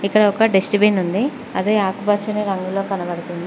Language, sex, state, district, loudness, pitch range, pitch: Telugu, female, Telangana, Mahabubabad, -19 LUFS, 190-210 Hz, 200 Hz